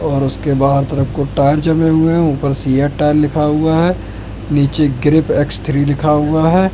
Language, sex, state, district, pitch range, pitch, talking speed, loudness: Hindi, male, Madhya Pradesh, Katni, 140-155 Hz, 145 Hz, 195 wpm, -14 LUFS